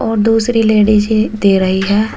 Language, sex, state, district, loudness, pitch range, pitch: Hindi, female, Uttar Pradesh, Shamli, -12 LUFS, 205-225 Hz, 215 Hz